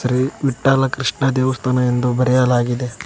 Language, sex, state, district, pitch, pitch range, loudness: Kannada, male, Karnataka, Koppal, 130 Hz, 125-135 Hz, -17 LUFS